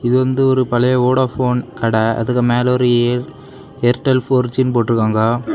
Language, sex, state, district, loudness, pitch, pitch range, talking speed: Tamil, male, Tamil Nadu, Kanyakumari, -16 LUFS, 125 Hz, 120-130 Hz, 150 wpm